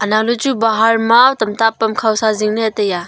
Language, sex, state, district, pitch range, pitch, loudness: Wancho, female, Arunachal Pradesh, Longding, 215-225 Hz, 225 Hz, -14 LUFS